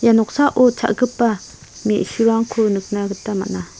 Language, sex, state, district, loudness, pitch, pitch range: Garo, female, Meghalaya, South Garo Hills, -18 LUFS, 225 Hz, 205-235 Hz